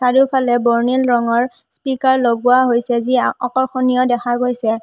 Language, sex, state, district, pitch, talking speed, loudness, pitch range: Assamese, female, Assam, Hailakandi, 250 Hz, 125 wpm, -16 LUFS, 240-255 Hz